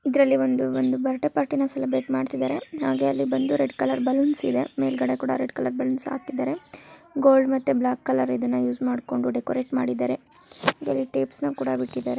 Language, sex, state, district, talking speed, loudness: Kannada, female, Karnataka, Mysore, 160 wpm, -24 LUFS